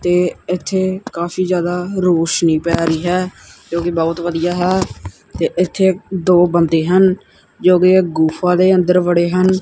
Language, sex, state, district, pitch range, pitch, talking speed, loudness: Punjabi, male, Punjab, Kapurthala, 170-185 Hz, 180 Hz, 155 wpm, -15 LUFS